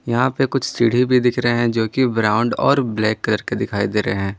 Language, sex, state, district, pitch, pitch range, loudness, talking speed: Hindi, male, Jharkhand, Ranchi, 120 Hz, 110-125 Hz, -18 LUFS, 260 wpm